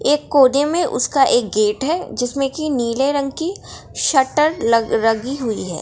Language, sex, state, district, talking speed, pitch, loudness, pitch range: Hindi, female, Bihar, Darbhanga, 165 wpm, 270 Hz, -18 LUFS, 230-290 Hz